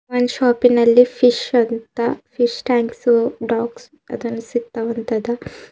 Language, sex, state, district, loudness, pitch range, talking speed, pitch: Kannada, female, Karnataka, Bidar, -18 LUFS, 230-245 Hz, 95 wpm, 240 Hz